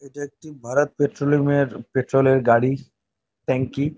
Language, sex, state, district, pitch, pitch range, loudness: Bengali, male, West Bengal, North 24 Parganas, 135 Hz, 125-145 Hz, -21 LUFS